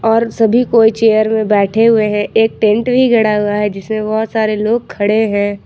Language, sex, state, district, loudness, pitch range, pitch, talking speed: Hindi, female, Jharkhand, Ranchi, -13 LUFS, 210-225 Hz, 220 Hz, 210 wpm